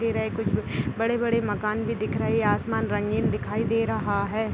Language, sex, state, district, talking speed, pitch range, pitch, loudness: Hindi, female, Bihar, Gopalganj, 240 wpm, 210-230 Hz, 225 Hz, -26 LUFS